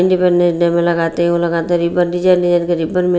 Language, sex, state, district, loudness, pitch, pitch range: Hindi, female, Bihar, Patna, -15 LUFS, 175 Hz, 170-180 Hz